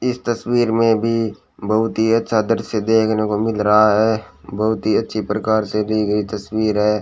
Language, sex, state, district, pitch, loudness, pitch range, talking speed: Hindi, male, Rajasthan, Bikaner, 110 Hz, -18 LUFS, 105-115 Hz, 190 wpm